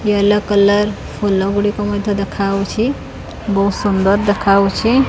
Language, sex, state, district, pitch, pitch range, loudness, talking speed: Odia, female, Odisha, Khordha, 205 Hz, 200-210 Hz, -15 LUFS, 105 wpm